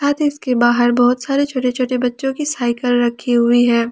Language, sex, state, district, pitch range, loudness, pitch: Hindi, female, Jharkhand, Ranchi, 240-270 Hz, -16 LUFS, 250 Hz